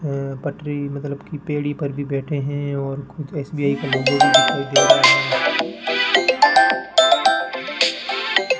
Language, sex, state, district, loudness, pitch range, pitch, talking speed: Hindi, male, Rajasthan, Bikaner, -18 LUFS, 140-160 Hz, 145 Hz, 130 wpm